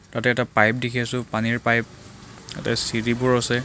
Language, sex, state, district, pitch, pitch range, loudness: Assamese, male, Assam, Kamrup Metropolitan, 120 Hz, 115-125 Hz, -22 LUFS